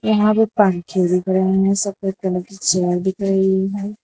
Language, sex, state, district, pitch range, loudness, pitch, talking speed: Hindi, female, Gujarat, Valsad, 185-200 Hz, -18 LUFS, 190 Hz, 195 wpm